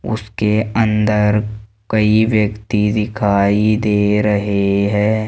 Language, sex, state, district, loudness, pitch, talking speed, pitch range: Hindi, male, Rajasthan, Jaipur, -16 LUFS, 105 Hz, 90 wpm, 105-110 Hz